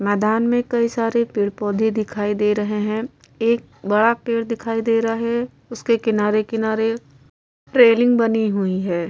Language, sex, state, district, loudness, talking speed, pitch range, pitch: Hindi, female, Uttar Pradesh, Hamirpur, -19 LUFS, 145 wpm, 210-230 Hz, 225 Hz